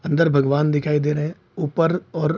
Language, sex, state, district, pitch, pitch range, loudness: Hindi, male, Bihar, Saharsa, 150 Hz, 150-165 Hz, -20 LUFS